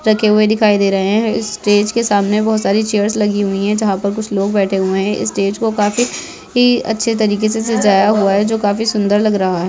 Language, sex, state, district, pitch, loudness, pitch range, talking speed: Hindi, male, Rajasthan, Churu, 210 Hz, -14 LUFS, 200-220 Hz, 245 wpm